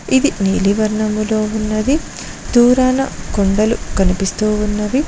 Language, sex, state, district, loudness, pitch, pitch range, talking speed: Telugu, female, Telangana, Mahabubabad, -16 LUFS, 215 Hz, 210-245 Hz, 95 wpm